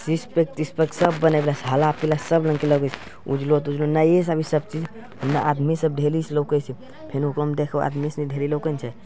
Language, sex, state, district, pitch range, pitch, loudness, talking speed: Angika, male, Bihar, Bhagalpur, 145-160 Hz, 150 Hz, -22 LUFS, 220 wpm